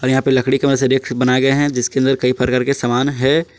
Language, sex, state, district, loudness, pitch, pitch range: Hindi, male, Jharkhand, Palamu, -16 LUFS, 130 Hz, 125-135 Hz